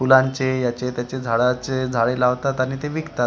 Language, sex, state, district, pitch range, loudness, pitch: Marathi, male, Maharashtra, Gondia, 125-130 Hz, -21 LUFS, 130 Hz